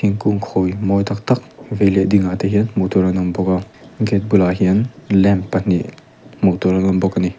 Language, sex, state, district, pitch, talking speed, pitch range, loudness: Mizo, male, Mizoram, Aizawl, 95 Hz, 225 wpm, 95-105 Hz, -17 LUFS